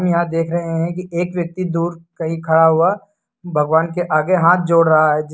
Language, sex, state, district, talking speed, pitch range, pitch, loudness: Hindi, male, Uttar Pradesh, Lucknow, 205 wpm, 160-175 Hz, 170 Hz, -17 LUFS